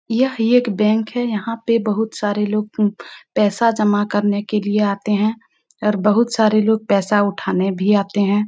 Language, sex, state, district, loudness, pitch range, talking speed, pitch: Hindi, female, Uttar Pradesh, Muzaffarnagar, -18 LUFS, 205-220 Hz, 190 wpm, 210 Hz